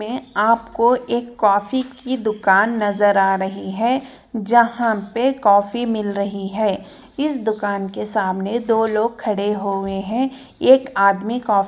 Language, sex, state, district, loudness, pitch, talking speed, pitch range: Hindi, female, Chhattisgarh, Jashpur, -19 LUFS, 220 Hz, 140 wpm, 200-240 Hz